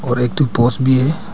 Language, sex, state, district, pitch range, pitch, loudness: Hindi, male, Arunachal Pradesh, Papum Pare, 125-145 Hz, 130 Hz, -15 LUFS